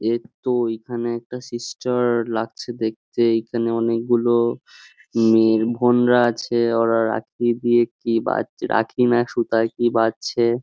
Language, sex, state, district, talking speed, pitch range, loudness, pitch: Bengali, male, West Bengal, Jhargram, 95 wpm, 115-120 Hz, -20 LUFS, 120 Hz